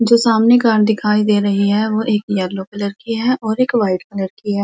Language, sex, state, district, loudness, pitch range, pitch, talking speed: Hindi, female, Uttar Pradesh, Muzaffarnagar, -16 LUFS, 200-230 Hz, 215 Hz, 245 wpm